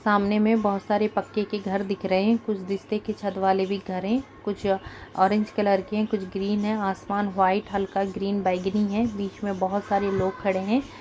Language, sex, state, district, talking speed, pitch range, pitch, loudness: Hindi, female, Uttar Pradesh, Jalaun, 225 wpm, 195-210 Hz, 200 Hz, -25 LUFS